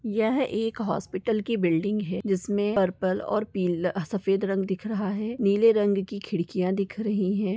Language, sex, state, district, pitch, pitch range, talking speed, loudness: Hindi, female, Bihar, East Champaran, 205 Hz, 190-215 Hz, 175 wpm, -26 LUFS